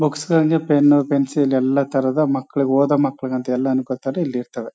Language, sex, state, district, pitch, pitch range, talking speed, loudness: Kannada, male, Karnataka, Chamarajanagar, 140 Hz, 130-145 Hz, 165 wpm, -19 LUFS